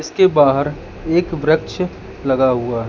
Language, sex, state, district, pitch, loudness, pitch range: Hindi, male, Madhya Pradesh, Katni, 150 Hz, -17 LUFS, 130-170 Hz